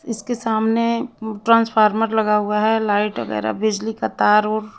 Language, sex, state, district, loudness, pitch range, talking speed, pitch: Hindi, female, Himachal Pradesh, Shimla, -19 LUFS, 210-225 Hz, 150 wpm, 220 Hz